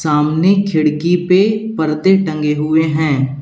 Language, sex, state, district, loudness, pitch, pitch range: Hindi, male, Uttar Pradesh, Lalitpur, -14 LUFS, 160 Hz, 150-185 Hz